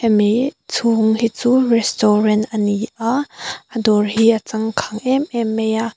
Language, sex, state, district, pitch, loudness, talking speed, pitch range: Mizo, female, Mizoram, Aizawl, 225 Hz, -17 LUFS, 160 wpm, 215-235 Hz